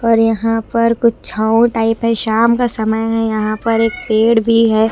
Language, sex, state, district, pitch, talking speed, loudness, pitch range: Hindi, female, Bihar, West Champaran, 225 Hz, 205 wpm, -14 LUFS, 220-230 Hz